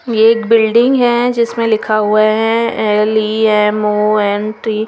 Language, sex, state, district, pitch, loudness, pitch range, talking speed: Hindi, female, Chandigarh, Chandigarh, 220 Hz, -12 LUFS, 215-230 Hz, 125 wpm